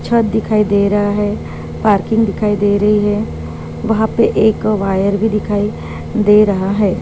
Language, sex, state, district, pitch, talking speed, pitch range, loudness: Hindi, female, Maharashtra, Dhule, 210 Hz, 160 wpm, 200-215 Hz, -14 LUFS